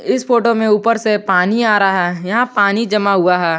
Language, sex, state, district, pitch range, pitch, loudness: Hindi, male, Jharkhand, Garhwa, 190-230 Hz, 210 Hz, -14 LUFS